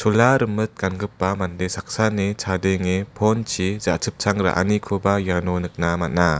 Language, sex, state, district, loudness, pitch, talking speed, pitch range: Garo, male, Meghalaya, West Garo Hills, -21 LUFS, 95 Hz, 110 wpm, 90-105 Hz